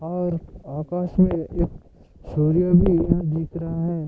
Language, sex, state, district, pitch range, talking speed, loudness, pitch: Hindi, male, Maharashtra, Dhule, 155-175 Hz, 130 wpm, -22 LUFS, 165 Hz